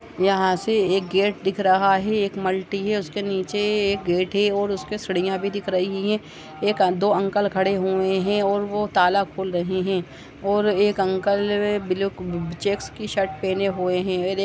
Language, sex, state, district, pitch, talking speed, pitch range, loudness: Hindi, male, Uttar Pradesh, Jalaun, 195 Hz, 195 wpm, 185-205 Hz, -22 LUFS